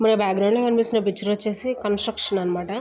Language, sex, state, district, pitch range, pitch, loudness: Telugu, female, Andhra Pradesh, Guntur, 200-225 Hz, 210 Hz, -22 LUFS